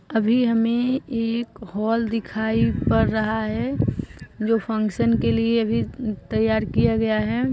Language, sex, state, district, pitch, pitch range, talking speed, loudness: Hindi, female, Bihar, Saran, 225 Hz, 220-230 Hz, 135 wpm, -22 LUFS